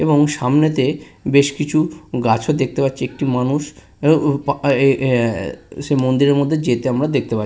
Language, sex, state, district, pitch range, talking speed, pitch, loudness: Bengali, male, West Bengal, Purulia, 130-150 Hz, 185 wpm, 140 Hz, -17 LUFS